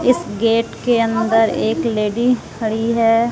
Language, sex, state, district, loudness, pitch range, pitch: Hindi, female, Bihar, West Champaran, -17 LUFS, 220-235 Hz, 225 Hz